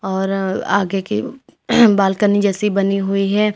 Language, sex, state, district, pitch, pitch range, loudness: Hindi, female, Uttar Pradesh, Lalitpur, 200 Hz, 195-210 Hz, -17 LUFS